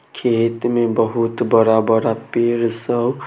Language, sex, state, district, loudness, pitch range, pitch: Maithili, male, Bihar, Samastipur, -17 LUFS, 115-120 Hz, 115 Hz